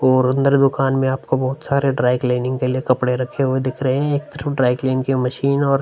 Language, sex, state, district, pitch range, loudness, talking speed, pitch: Hindi, male, Uttar Pradesh, Hamirpur, 130-135 Hz, -18 LUFS, 225 wpm, 130 Hz